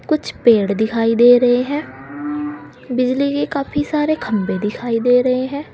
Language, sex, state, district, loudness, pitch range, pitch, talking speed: Hindi, female, Uttar Pradesh, Saharanpur, -17 LUFS, 210-280 Hz, 245 Hz, 155 wpm